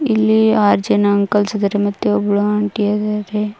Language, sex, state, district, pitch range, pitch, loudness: Kannada, female, Karnataka, Koppal, 205-210 Hz, 210 Hz, -16 LUFS